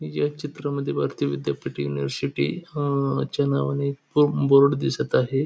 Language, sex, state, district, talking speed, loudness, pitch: Marathi, male, Maharashtra, Pune, 145 wpm, -24 LUFS, 135 Hz